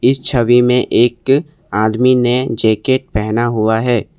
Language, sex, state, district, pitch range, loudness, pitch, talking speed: Hindi, male, Assam, Kamrup Metropolitan, 110-130 Hz, -14 LUFS, 120 Hz, 145 wpm